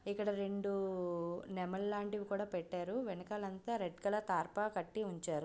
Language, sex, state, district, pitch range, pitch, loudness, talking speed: Telugu, female, Andhra Pradesh, Visakhapatnam, 180-205 Hz, 195 Hz, -40 LUFS, 130 wpm